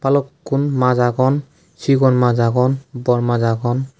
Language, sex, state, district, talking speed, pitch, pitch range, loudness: Chakma, male, Tripura, West Tripura, 135 wpm, 130 Hz, 125-135 Hz, -17 LUFS